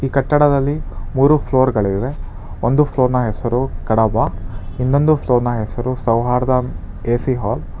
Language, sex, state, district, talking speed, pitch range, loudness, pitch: Kannada, male, Karnataka, Bangalore, 105 wpm, 105-135 Hz, -17 LUFS, 125 Hz